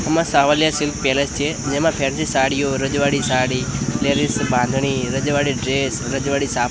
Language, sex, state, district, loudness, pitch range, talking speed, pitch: Gujarati, male, Gujarat, Gandhinagar, -19 LUFS, 130-145 Hz, 145 wpm, 135 Hz